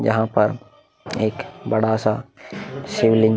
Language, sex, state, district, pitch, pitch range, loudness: Hindi, male, Uttar Pradesh, Muzaffarnagar, 110 Hz, 110-115 Hz, -21 LUFS